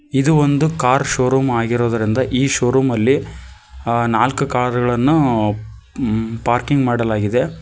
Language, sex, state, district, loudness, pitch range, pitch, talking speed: Kannada, male, Karnataka, Koppal, -17 LUFS, 115-135 Hz, 125 Hz, 95 wpm